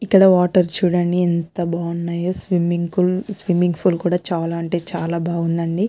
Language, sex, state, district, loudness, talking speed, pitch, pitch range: Telugu, female, Andhra Pradesh, Anantapur, -19 LUFS, 110 wpm, 175 Hz, 170-180 Hz